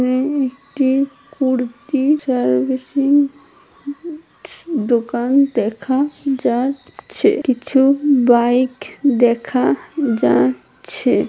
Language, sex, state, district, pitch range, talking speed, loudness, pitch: Bengali, female, West Bengal, Paschim Medinipur, 240-285 Hz, 75 wpm, -17 LUFS, 265 Hz